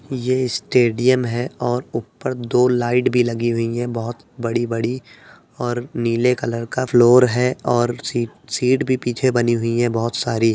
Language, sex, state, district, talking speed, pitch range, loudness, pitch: Hindi, male, Uttar Pradesh, Etah, 165 wpm, 115-125 Hz, -19 LUFS, 120 Hz